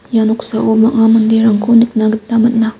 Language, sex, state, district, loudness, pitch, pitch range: Garo, female, Meghalaya, West Garo Hills, -11 LUFS, 225 Hz, 220-230 Hz